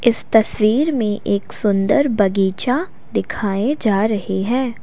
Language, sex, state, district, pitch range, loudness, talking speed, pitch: Hindi, female, Assam, Kamrup Metropolitan, 200-250 Hz, -18 LUFS, 125 wpm, 215 Hz